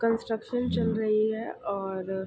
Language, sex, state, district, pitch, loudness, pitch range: Hindi, female, Uttar Pradesh, Ghazipur, 220 Hz, -29 LUFS, 195-225 Hz